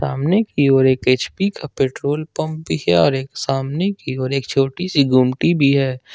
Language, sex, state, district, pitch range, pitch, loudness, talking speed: Hindi, male, Jharkhand, Ranchi, 130-150 Hz, 135 Hz, -18 LUFS, 205 wpm